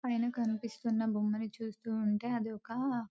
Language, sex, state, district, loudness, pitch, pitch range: Telugu, female, Telangana, Nalgonda, -35 LUFS, 225 Hz, 220-235 Hz